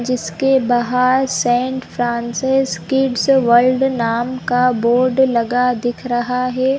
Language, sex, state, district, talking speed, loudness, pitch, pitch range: Hindi, female, Chhattisgarh, Bilaspur, 90 wpm, -16 LUFS, 250 Hz, 240-260 Hz